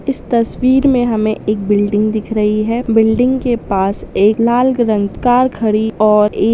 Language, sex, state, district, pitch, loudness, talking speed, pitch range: Hindi, female, Andhra Pradesh, Chittoor, 220 Hz, -14 LUFS, 190 wpm, 210-245 Hz